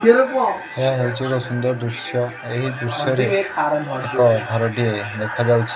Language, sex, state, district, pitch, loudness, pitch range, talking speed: Odia, male, Odisha, Khordha, 125 Hz, -20 LUFS, 120-130 Hz, 115 wpm